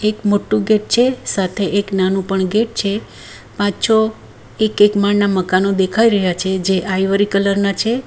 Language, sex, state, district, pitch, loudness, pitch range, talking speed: Gujarati, female, Gujarat, Valsad, 200 Hz, -16 LUFS, 190-215 Hz, 180 wpm